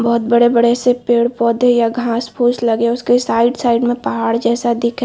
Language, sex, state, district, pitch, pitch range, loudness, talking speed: Hindi, female, Chhattisgarh, Bastar, 235 Hz, 235-245 Hz, -15 LUFS, 190 wpm